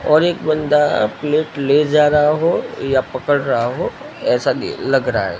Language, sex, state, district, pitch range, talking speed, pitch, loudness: Hindi, male, Gujarat, Gandhinagar, 145-155 Hz, 190 wpm, 150 Hz, -17 LUFS